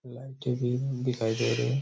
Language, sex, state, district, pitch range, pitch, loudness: Hindi, male, Chhattisgarh, Raigarh, 125-135 Hz, 125 Hz, -29 LUFS